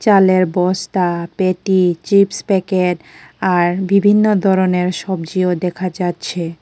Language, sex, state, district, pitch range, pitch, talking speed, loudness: Bengali, female, Tripura, West Tripura, 180-195 Hz, 185 Hz, 100 wpm, -16 LUFS